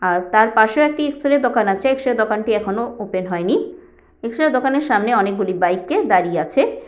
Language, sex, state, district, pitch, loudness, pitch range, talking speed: Bengali, female, West Bengal, Purulia, 230 Hz, -18 LUFS, 200-300 Hz, 185 wpm